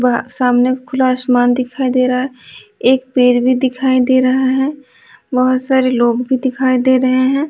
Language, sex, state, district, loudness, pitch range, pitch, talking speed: Hindi, female, Bihar, Kaimur, -14 LUFS, 250-260 Hz, 255 Hz, 185 wpm